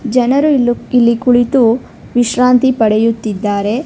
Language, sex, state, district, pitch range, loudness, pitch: Kannada, female, Karnataka, Bangalore, 225-250 Hz, -12 LUFS, 245 Hz